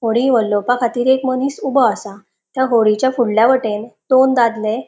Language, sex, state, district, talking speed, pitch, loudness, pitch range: Konkani, female, Goa, North and South Goa, 160 wpm, 240 Hz, -15 LUFS, 215-260 Hz